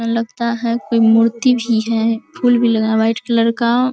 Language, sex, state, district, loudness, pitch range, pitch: Hindi, female, Bihar, Araria, -16 LUFS, 225-240 Hz, 230 Hz